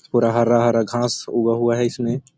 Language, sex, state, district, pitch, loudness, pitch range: Hindi, male, Chhattisgarh, Sarguja, 120 Hz, -19 LUFS, 115-120 Hz